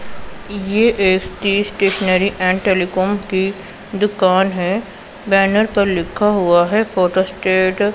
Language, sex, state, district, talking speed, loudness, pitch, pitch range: Hindi, female, Punjab, Pathankot, 130 wpm, -16 LUFS, 195 Hz, 185-205 Hz